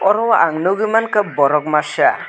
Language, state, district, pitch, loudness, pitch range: Kokborok, Tripura, West Tripura, 195 Hz, -15 LUFS, 155-215 Hz